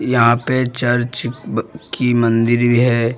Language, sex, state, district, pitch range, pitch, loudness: Hindi, male, Bihar, Jamui, 120-125 Hz, 120 Hz, -16 LUFS